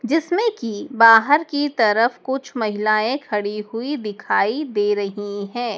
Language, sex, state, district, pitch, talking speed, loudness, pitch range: Hindi, male, Madhya Pradesh, Dhar, 230 Hz, 135 wpm, -19 LUFS, 210-285 Hz